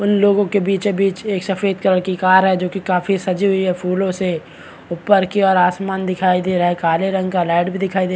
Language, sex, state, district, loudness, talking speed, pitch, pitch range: Hindi, male, Chhattisgarh, Bastar, -17 LUFS, 255 wpm, 190 Hz, 180-195 Hz